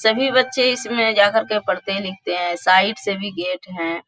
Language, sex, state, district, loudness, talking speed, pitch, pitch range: Hindi, female, Bihar, Bhagalpur, -19 LUFS, 175 wpm, 200 Hz, 185-225 Hz